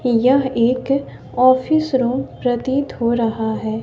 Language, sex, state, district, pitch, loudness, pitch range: Hindi, female, Bihar, West Champaran, 250 Hz, -18 LUFS, 235-265 Hz